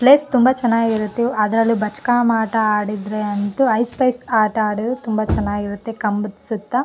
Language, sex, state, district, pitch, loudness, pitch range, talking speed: Kannada, female, Karnataka, Bellary, 220 Hz, -18 LUFS, 210-240 Hz, 140 wpm